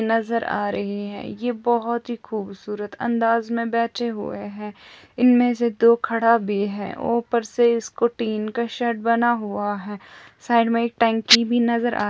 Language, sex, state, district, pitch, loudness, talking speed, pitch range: Hindi, female, Andhra Pradesh, Anantapur, 230 Hz, -21 LUFS, 240 wpm, 210-235 Hz